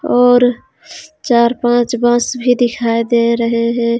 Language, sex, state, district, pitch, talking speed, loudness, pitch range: Hindi, female, Jharkhand, Ranchi, 240 Hz, 135 wpm, -13 LUFS, 235-245 Hz